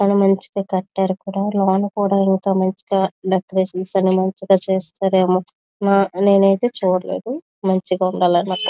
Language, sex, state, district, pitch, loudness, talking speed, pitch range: Telugu, female, Andhra Pradesh, Visakhapatnam, 190 Hz, -18 LUFS, 115 wpm, 185-195 Hz